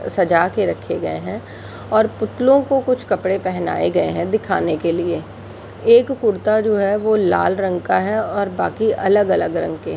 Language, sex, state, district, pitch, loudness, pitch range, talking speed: Hindi, female, Bihar, Jahanabad, 210 Hz, -18 LUFS, 190-220 Hz, 185 wpm